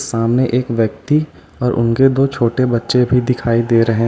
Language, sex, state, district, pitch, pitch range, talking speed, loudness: Hindi, male, Uttar Pradesh, Lalitpur, 125 Hz, 115-130 Hz, 190 wpm, -15 LUFS